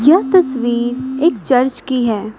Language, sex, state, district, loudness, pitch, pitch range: Hindi, female, Uttar Pradesh, Lucknow, -15 LUFS, 255 Hz, 240-285 Hz